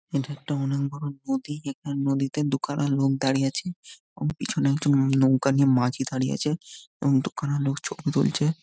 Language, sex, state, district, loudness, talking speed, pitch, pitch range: Bengali, male, West Bengal, Jhargram, -25 LUFS, 200 wpm, 140 Hz, 135-145 Hz